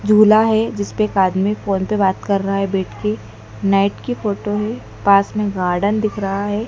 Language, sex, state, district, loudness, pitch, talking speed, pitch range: Hindi, female, Madhya Pradesh, Dhar, -18 LUFS, 200 Hz, 205 wpm, 195-210 Hz